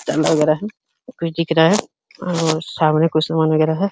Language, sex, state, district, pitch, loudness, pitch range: Hindi, male, Uttar Pradesh, Hamirpur, 160 Hz, -18 LUFS, 155-195 Hz